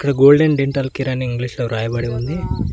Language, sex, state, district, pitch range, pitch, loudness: Telugu, male, Telangana, Mahabubabad, 120-140 Hz, 130 Hz, -17 LUFS